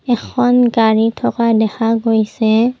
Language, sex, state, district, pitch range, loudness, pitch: Assamese, female, Assam, Kamrup Metropolitan, 220-245 Hz, -14 LUFS, 230 Hz